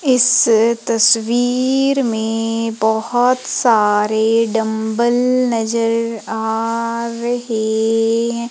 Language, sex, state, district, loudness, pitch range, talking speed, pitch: Hindi, female, Madhya Pradesh, Umaria, -16 LUFS, 220-240 Hz, 70 wpm, 230 Hz